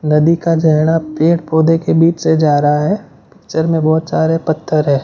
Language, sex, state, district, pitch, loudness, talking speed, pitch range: Hindi, male, Gujarat, Gandhinagar, 160 Hz, -13 LUFS, 200 wpm, 155-165 Hz